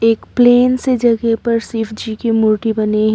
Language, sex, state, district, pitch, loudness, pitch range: Hindi, female, Arunachal Pradesh, Papum Pare, 225 Hz, -15 LUFS, 215-240 Hz